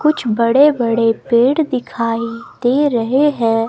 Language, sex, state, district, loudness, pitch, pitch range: Hindi, female, Himachal Pradesh, Shimla, -15 LUFS, 235 Hz, 230-275 Hz